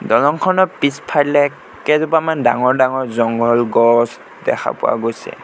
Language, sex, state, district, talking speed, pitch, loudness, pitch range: Assamese, male, Assam, Sonitpur, 110 wpm, 130 Hz, -16 LUFS, 120-150 Hz